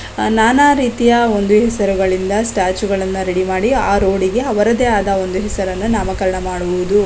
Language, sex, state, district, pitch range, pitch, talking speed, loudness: Kannada, female, Karnataka, Belgaum, 190-225 Hz, 200 Hz, 145 wpm, -15 LUFS